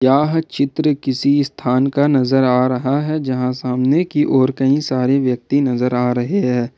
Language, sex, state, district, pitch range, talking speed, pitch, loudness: Hindi, male, Jharkhand, Ranchi, 125-145 Hz, 175 wpm, 135 Hz, -17 LUFS